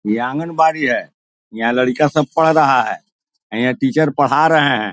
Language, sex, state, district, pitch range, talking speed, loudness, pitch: Hindi, male, Bihar, East Champaran, 120-155 Hz, 170 wpm, -15 LUFS, 140 Hz